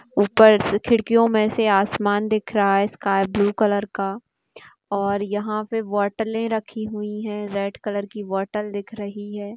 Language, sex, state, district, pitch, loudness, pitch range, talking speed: Marathi, female, Maharashtra, Sindhudurg, 210 Hz, -21 LUFS, 205-215 Hz, 165 wpm